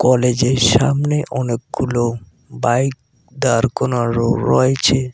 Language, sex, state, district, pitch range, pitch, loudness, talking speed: Bengali, male, West Bengal, Cooch Behar, 120-130 Hz, 125 Hz, -17 LUFS, 80 wpm